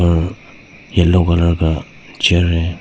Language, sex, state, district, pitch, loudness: Hindi, male, Arunachal Pradesh, Papum Pare, 85 Hz, -15 LUFS